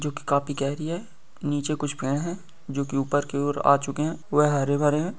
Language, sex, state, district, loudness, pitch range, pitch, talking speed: Hindi, male, Uttar Pradesh, Etah, -25 LUFS, 140-155 Hz, 145 Hz, 230 wpm